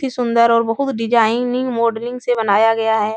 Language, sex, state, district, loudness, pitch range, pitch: Hindi, female, Uttar Pradesh, Etah, -16 LUFS, 225-245 Hz, 235 Hz